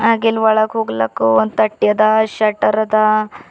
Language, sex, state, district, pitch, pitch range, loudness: Kannada, female, Karnataka, Bidar, 215 Hz, 210-220 Hz, -15 LUFS